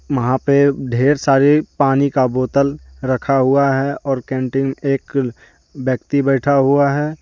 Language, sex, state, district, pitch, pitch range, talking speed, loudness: Hindi, male, Jharkhand, Deoghar, 135 Hz, 130-140 Hz, 140 wpm, -16 LUFS